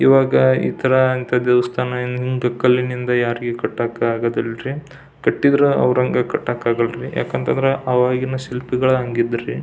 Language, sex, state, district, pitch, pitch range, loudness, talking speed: Kannada, male, Karnataka, Belgaum, 125 Hz, 120-130 Hz, -18 LUFS, 150 wpm